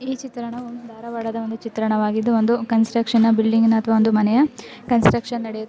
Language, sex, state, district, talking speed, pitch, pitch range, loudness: Kannada, female, Karnataka, Dharwad, 135 wpm, 230 Hz, 225-235 Hz, -19 LUFS